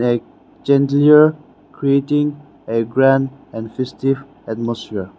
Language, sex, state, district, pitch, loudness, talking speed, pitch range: English, male, Nagaland, Dimapur, 135 Hz, -17 LUFS, 105 wpm, 115-140 Hz